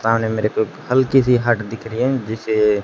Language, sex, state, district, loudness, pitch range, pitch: Hindi, male, Haryana, Charkhi Dadri, -18 LUFS, 110-125 Hz, 115 Hz